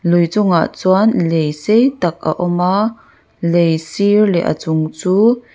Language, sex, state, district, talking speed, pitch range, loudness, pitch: Mizo, female, Mizoram, Aizawl, 160 wpm, 170-210 Hz, -15 LUFS, 180 Hz